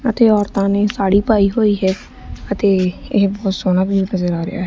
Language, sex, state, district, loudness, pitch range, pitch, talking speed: Punjabi, female, Punjab, Kapurthala, -16 LUFS, 190-210 Hz, 200 Hz, 205 wpm